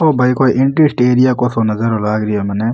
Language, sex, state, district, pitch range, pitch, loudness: Rajasthani, male, Rajasthan, Nagaur, 110-130 Hz, 125 Hz, -14 LUFS